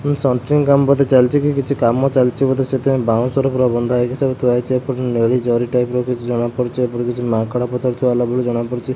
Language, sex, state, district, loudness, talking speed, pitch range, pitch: Odia, male, Odisha, Khordha, -17 LUFS, 220 wpm, 120-135 Hz, 125 Hz